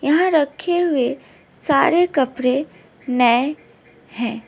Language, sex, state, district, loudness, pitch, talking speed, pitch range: Hindi, female, West Bengal, Alipurduar, -18 LUFS, 280 Hz, 95 wpm, 250-325 Hz